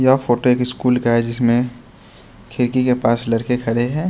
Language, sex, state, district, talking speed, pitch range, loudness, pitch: Hindi, male, Bihar, West Champaran, 190 wpm, 115-125 Hz, -17 LUFS, 125 Hz